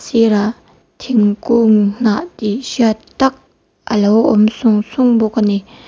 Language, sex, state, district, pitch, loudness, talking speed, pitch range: Mizo, female, Mizoram, Aizawl, 220 Hz, -14 LUFS, 135 wpm, 210-235 Hz